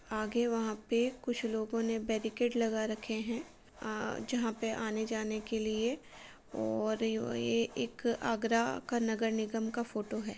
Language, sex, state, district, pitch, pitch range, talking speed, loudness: Hindi, female, Uttar Pradesh, Etah, 225 Hz, 220-235 Hz, 145 wpm, -35 LUFS